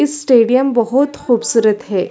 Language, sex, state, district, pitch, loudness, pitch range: Hindi, female, Chhattisgarh, Sarguja, 240 Hz, -14 LUFS, 225-270 Hz